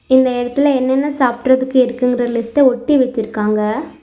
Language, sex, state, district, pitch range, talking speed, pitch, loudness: Tamil, female, Tamil Nadu, Nilgiris, 245-270 Hz, 120 wpm, 255 Hz, -15 LUFS